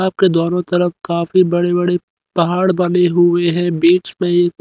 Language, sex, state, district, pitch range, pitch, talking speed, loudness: Hindi, male, Haryana, Rohtak, 175-180 Hz, 175 Hz, 170 wpm, -15 LUFS